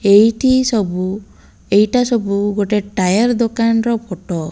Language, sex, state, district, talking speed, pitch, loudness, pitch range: Odia, female, Odisha, Malkangiri, 120 wpm, 210 Hz, -16 LUFS, 195-230 Hz